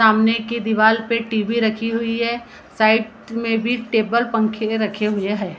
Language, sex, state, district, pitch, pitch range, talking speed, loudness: Hindi, female, Maharashtra, Gondia, 225 Hz, 215-230 Hz, 170 wpm, -19 LUFS